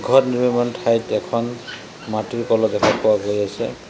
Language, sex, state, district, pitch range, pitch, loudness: Assamese, male, Assam, Sonitpur, 110-120 Hz, 115 Hz, -20 LUFS